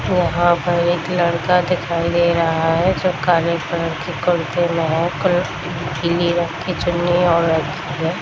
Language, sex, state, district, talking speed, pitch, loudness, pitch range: Hindi, female, Bihar, Darbhanga, 175 wpm, 170 Hz, -18 LUFS, 165-175 Hz